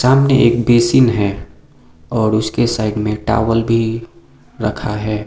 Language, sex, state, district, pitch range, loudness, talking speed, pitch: Hindi, male, Sikkim, Gangtok, 105-120 Hz, -15 LUFS, 150 wpm, 115 Hz